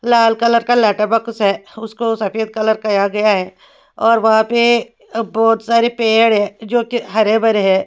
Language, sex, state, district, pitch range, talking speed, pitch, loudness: Hindi, female, Haryana, Rohtak, 215-230 Hz, 175 wpm, 225 Hz, -15 LUFS